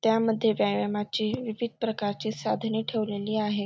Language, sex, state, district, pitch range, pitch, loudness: Marathi, female, Maharashtra, Dhule, 205-225 Hz, 220 Hz, -28 LUFS